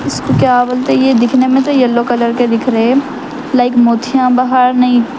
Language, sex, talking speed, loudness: Urdu, male, 210 wpm, -11 LUFS